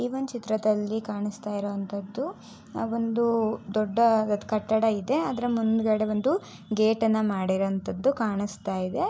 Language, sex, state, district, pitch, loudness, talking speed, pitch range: Kannada, female, Karnataka, Shimoga, 215 Hz, -27 LUFS, 110 wpm, 205-230 Hz